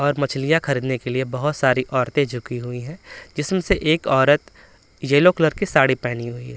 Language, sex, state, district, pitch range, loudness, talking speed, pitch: Hindi, male, Bihar, Patna, 125-150 Hz, -20 LUFS, 200 wpm, 135 Hz